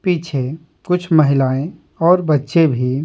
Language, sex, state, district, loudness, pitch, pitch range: Hindi, male, Bihar, Patna, -16 LUFS, 155 Hz, 135-175 Hz